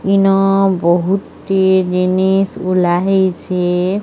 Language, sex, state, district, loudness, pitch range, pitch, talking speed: Odia, male, Odisha, Sambalpur, -14 LUFS, 180-195 Hz, 190 Hz, 90 wpm